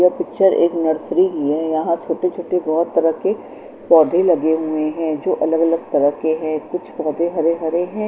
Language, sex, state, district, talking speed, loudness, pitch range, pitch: Hindi, female, Chandigarh, Chandigarh, 200 wpm, -18 LUFS, 155-175 Hz, 165 Hz